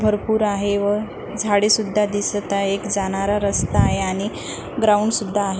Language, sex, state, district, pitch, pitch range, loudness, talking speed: Marathi, female, Maharashtra, Nagpur, 205 Hz, 200-210 Hz, -20 LUFS, 170 wpm